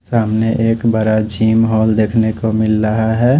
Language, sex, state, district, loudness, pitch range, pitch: Hindi, male, Chhattisgarh, Raipur, -14 LUFS, 110-115 Hz, 110 Hz